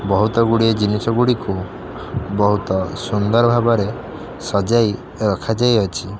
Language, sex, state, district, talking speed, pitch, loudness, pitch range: Odia, male, Odisha, Khordha, 105 wpm, 105 Hz, -18 LUFS, 100-115 Hz